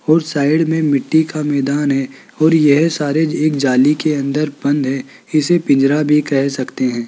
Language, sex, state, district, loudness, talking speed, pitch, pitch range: Hindi, male, Rajasthan, Jaipur, -15 LUFS, 185 wpm, 145 Hz, 140-155 Hz